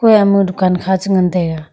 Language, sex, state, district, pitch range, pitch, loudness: Wancho, female, Arunachal Pradesh, Longding, 180-200 Hz, 185 Hz, -14 LUFS